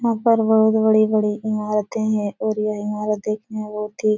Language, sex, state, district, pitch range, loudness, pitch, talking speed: Hindi, female, Bihar, Supaul, 210-220 Hz, -20 LUFS, 215 Hz, 200 wpm